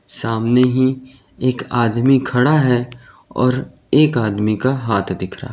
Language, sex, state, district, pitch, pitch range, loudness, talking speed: Hindi, male, Uttar Pradesh, Lalitpur, 125 Hz, 115-130 Hz, -17 LUFS, 150 wpm